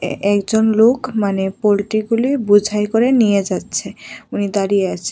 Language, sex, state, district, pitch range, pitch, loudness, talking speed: Bengali, female, Tripura, West Tripura, 200-225 Hz, 210 Hz, -16 LUFS, 140 wpm